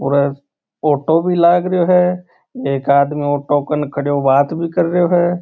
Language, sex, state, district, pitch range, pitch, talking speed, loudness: Marwari, male, Rajasthan, Churu, 140-175 Hz, 155 Hz, 175 wpm, -15 LUFS